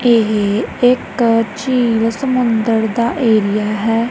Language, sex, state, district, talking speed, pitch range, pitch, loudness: Punjabi, female, Punjab, Kapurthala, 100 wpm, 220-240 Hz, 230 Hz, -15 LUFS